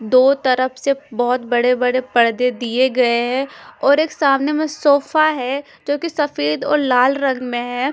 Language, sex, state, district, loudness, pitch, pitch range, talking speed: Hindi, female, Punjab, Fazilka, -17 LUFS, 260 Hz, 250-285 Hz, 180 wpm